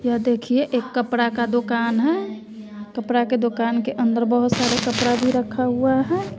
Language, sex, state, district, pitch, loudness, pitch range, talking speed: Hindi, female, Bihar, West Champaran, 240 Hz, -20 LUFS, 235-250 Hz, 180 wpm